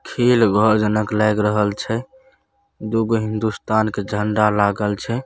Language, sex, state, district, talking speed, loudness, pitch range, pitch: Maithili, male, Bihar, Saharsa, 160 wpm, -19 LUFS, 105-115 Hz, 110 Hz